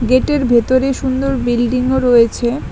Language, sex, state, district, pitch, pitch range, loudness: Bengali, female, West Bengal, Alipurduar, 255 Hz, 240-265 Hz, -14 LUFS